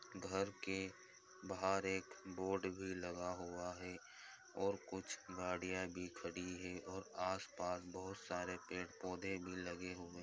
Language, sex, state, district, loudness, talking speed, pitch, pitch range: Hindi, male, Bihar, Jamui, -46 LUFS, 150 wpm, 90 Hz, 90-95 Hz